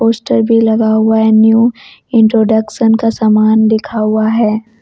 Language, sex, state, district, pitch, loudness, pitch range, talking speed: Hindi, female, Jharkhand, Deoghar, 220 Hz, -11 LUFS, 220-225 Hz, 150 wpm